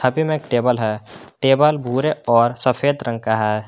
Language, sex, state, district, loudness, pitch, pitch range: Hindi, male, Jharkhand, Garhwa, -18 LUFS, 120 Hz, 110-135 Hz